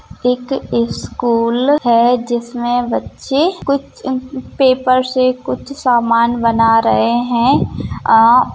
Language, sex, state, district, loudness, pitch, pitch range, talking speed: Hindi, female, Maharashtra, Nagpur, -15 LUFS, 245 Hz, 235-260 Hz, 105 wpm